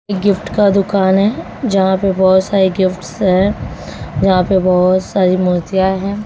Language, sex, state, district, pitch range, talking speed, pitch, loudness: Hindi, male, Maharashtra, Mumbai Suburban, 185-195 Hz, 155 wpm, 190 Hz, -14 LUFS